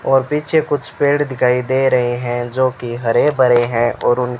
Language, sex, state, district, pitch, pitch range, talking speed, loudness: Hindi, male, Rajasthan, Bikaner, 125 Hz, 120-140 Hz, 205 wpm, -16 LUFS